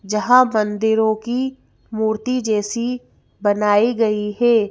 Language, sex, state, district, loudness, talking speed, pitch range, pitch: Hindi, female, Madhya Pradesh, Bhopal, -18 LUFS, 100 wpm, 210-240 Hz, 220 Hz